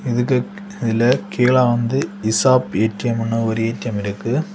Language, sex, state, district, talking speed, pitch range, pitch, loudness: Tamil, male, Tamil Nadu, Kanyakumari, 120 wpm, 110-130 Hz, 120 Hz, -18 LUFS